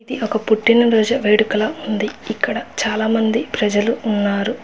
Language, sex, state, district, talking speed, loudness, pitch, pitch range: Telugu, female, Telangana, Hyderabad, 115 wpm, -18 LUFS, 220 Hz, 210-230 Hz